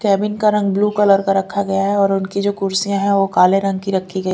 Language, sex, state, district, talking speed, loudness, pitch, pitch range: Hindi, female, Delhi, New Delhi, 275 wpm, -16 LUFS, 195 Hz, 195-200 Hz